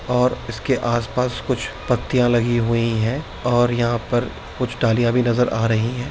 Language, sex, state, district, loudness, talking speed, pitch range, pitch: Hindi, male, Bihar, Begusarai, -20 LUFS, 175 wpm, 115-125 Hz, 120 Hz